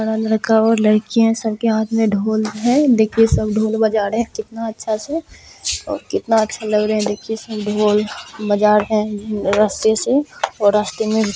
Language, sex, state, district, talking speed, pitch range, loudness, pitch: Maithili, female, Bihar, Purnia, 175 wpm, 210-225 Hz, -17 LUFS, 220 Hz